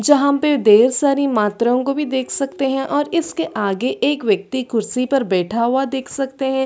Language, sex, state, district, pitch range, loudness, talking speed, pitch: Hindi, female, Chhattisgarh, Sarguja, 235-280 Hz, -18 LUFS, 200 wpm, 265 Hz